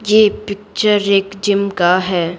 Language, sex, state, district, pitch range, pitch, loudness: Hindi, female, Bihar, Patna, 185-205 Hz, 200 Hz, -15 LUFS